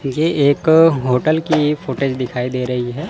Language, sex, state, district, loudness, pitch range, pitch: Hindi, male, Chandigarh, Chandigarh, -16 LUFS, 125-155 Hz, 140 Hz